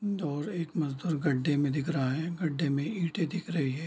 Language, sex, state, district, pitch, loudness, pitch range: Hindi, male, Bihar, Darbhanga, 155 Hz, -31 LUFS, 145-170 Hz